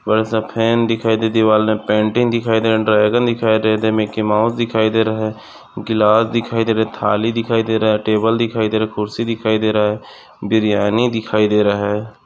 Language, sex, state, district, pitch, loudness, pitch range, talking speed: Hindi, male, Maharashtra, Aurangabad, 110 Hz, -16 LUFS, 110-115 Hz, 185 wpm